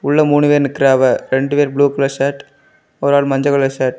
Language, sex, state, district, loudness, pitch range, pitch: Tamil, male, Tamil Nadu, Kanyakumari, -14 LUFS, 135-145 Hz, 140 Hz